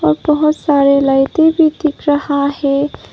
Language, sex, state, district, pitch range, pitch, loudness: Hindi, female, Arunachal Pradesh, Papum Pare, 280-305 Hz, 290 Hz, -13 LUFS